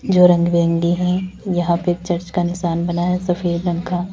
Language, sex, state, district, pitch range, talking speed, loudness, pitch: Hindi, female, Uttar Pradesh, Lalitpur, 170-180 Hz, 205 wpm, -18 LUFS, 175 Hz